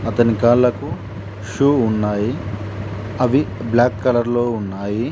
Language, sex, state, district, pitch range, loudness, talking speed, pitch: Telugu, male, Telangana, Mahabubabad, 105-120 Hz, -18 LUFS, 105 wpm, 110 Hz